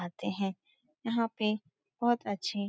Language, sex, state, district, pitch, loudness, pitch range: Hindi, female, Uttar Pradesh, Etah, 210 Hz, -33 LUFS, 195-230 Hz